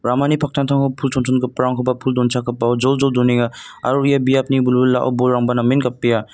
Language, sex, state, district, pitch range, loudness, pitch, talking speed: Garo, male, Meghalaya, North Garo Hills, 125-135 Hz, -17 LUFS, 125 Hz, 140 wpm